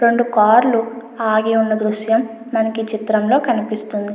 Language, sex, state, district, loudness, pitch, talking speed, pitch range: Telugu, female, Andhra Pradesh, Anantapur, -17 LUFS, 225 Hz, 145 wpm, 215-235 Hz